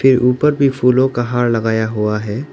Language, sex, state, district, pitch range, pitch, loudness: Hindi, male, Arunachal Pradesh, Lower Dibang Valley, 110-130 Hz, 125 Hz, -15 LUFS